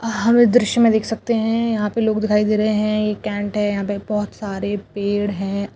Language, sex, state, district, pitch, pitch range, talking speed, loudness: Chhattisgarhi, female, Chhattisgarh, Rajnandgaon, 210 Hz, 205-225 Hz, 230 wpm, -19 LUFS